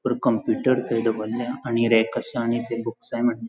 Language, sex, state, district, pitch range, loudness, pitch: Konkani, male, Goa, North and South Goa, 115-120 Hz, -24 LUFS, 115 Hz